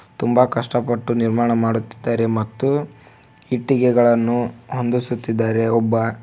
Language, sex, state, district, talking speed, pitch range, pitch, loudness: Kannada, male, Karnataka, Koppal, 75 wpm, 115-125 Hz, 120 Hz, -19 LUFS